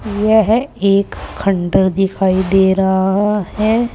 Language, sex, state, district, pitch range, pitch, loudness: Hindi, female, Uttar Pradesh, Saharanpur, 190-215 Hz, 195 Hz, -14 LUFS